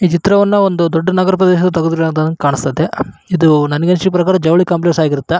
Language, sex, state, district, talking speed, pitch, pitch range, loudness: Kannada, male, Karnataka, Raichur, 165 wpm, 175 Hz, 160-185 Hz, -13 LUFS